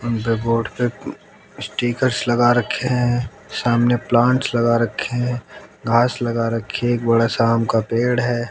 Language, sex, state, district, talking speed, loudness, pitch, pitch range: Hindi, male, Haryana, Jhajjar, 160 wpm, -19 LUFS, 120 Hz, 115-120 Hz